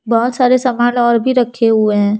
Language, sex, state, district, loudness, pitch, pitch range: Hindi, female, Jharkhand, Deoghar, -13 LUFS, 240 Hz, 225-250 Hz